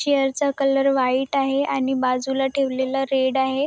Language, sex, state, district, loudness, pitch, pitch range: Marathi, female, Maharashtra, Chandrapur, -21 LUFS, 270 Hz, 265-275 Hz